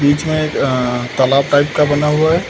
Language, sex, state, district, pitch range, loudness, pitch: Hindi, male, Uttar Pradesh, Lucknow, 135-155 Hz, -15 LUFS, 145 Hz